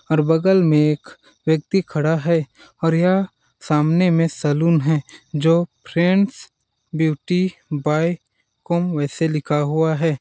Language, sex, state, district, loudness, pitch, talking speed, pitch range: Hindi, male, Chhattisgarh, Balrampur, -19 LUFS, 160 Hz, 130 wpm, 150-175 Hz